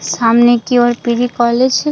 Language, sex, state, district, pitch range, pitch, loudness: Hindi, female, Chhattisgarh, Bilaspur, 235-245 Hz, 240 Hz, -12 LUFS